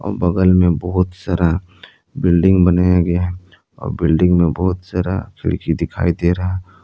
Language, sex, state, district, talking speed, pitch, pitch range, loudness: Hindi, male, Jharkhand, Palamu, 140 wpm, 90 Hz, 85-95 Hz, -17 LUFS